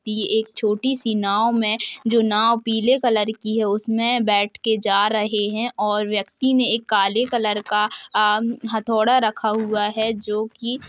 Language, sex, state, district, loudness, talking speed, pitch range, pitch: Hindi, female, Jharkhand, Sahebganj, -20 LUFS, 180 wpm, 210-230 Hz, 220 Hz